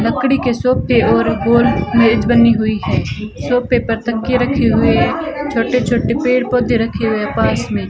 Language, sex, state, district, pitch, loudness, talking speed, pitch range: Hindi, female, Rajasthan, Bikaner, 240 Hz, -15 LUFS, 175 wpm, 225-250 Hz